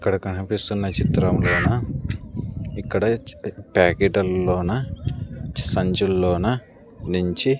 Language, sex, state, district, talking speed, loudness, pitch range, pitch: Telugu, male, Andhra Pradesh, Sri Satya Sai, 70 wpm, -22 LUFS, 90-115 Hz, 100 Hz